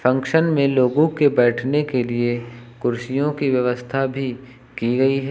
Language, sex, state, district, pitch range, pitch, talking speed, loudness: Hindi, male, Uttar Pradesh, Lucknow, 120-140 Hz, 130 Hz, 160 wpm, -20 LUFS